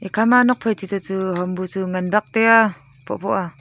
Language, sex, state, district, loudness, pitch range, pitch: Wancho, female, Arunachal Pradesh, Longding, -19 LUFS, 185-225 Hz, 195 Hz